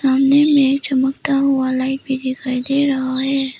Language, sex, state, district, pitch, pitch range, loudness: Hindi, female, Arunachal Pradesh, Papum Pare, 270 Hz, 260-275 Hz, -17 LUFS